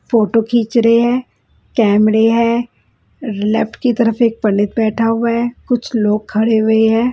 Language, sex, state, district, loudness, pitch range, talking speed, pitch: Hindi, female, Punjab, Kapurthala, -15 LUFS, 220-235 Hz, 160 wpm, 225 Hz